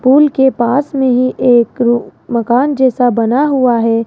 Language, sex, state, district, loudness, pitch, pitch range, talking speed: Hindi, female, Rajasthan, Jaipur, -12 LUFS, 250 Hz, 235-265 Hz, 160 wpm